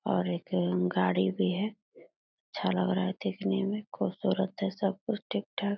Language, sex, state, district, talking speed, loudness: Hindi, female, Bihar, Purnia, 195 wpm, -31 LUFS